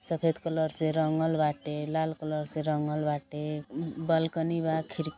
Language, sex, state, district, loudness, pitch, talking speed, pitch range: Bhojpuri, female, Uttar Pradesh, Gorakhpur, -30 LUFS, 155 Hz, 185 wpm, 150-160 Hz